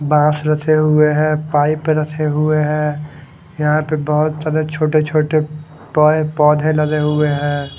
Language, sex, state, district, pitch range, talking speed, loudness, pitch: Hindi, male, Haryana, Charkhi Dadri, 150-155 Hz, 145 wpm, -16 LUFS, 150 Hz